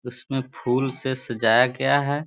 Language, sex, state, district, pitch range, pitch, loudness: Hindi, male, Bihar, Sitamarhi, 125-135 Hz, 130 Hz, -21 LUFS